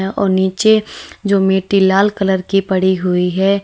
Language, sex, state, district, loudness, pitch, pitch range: Hindi, female, Uttar Pradesh, Lalitpur, -14 LUFS, 195 Hz, 190-200 Hz